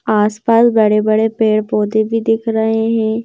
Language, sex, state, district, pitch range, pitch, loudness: Hindi, female, Madhya Pradesh, Bhopal, 215-225 Hz, 220 Hz, -14 LUFS